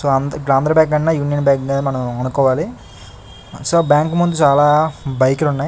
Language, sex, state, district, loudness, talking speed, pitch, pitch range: Telugu, male, Andhra Pradesh, Chittoor, -16 LUFS, 160 wpm, 140 Hz, 130-150 Hz